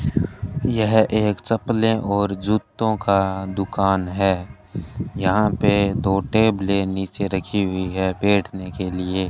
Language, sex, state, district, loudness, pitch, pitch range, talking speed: Hindi, male, Rajasthan, Bikaner, -21 LUFS, 100 Hz, 95-110 Hz, 125 wpm